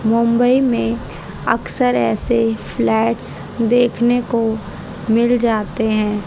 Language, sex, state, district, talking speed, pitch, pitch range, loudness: Hindi, female, Haryana, Jhajjar, 95 wpm, 225 Hz, 205-240 Hz, -17 LUFS